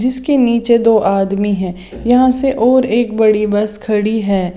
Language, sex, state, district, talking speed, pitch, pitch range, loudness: Hindi, female, Odisha, Sambalpur, 170 wpm, 220 Hz, 205-245 Hz, -14 LUFS